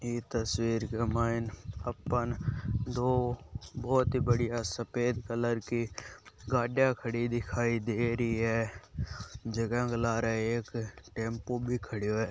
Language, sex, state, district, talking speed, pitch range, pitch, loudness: Marwari, male, Rajasthan, Nagaur, 125 wpm, 115-120 Hz, 115 Hz, -32 LUFS